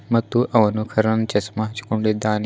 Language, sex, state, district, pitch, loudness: Kannada, male, Karnataka, Bidar, 110 Hz, -20 LUFS